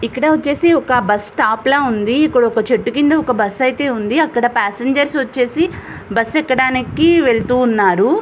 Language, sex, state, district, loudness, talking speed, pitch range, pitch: Telugu, female, Andhra Pradesh, Visakhapatnam, -15 LUFS, 155 wpm, 235-295 Hz, 255 Hz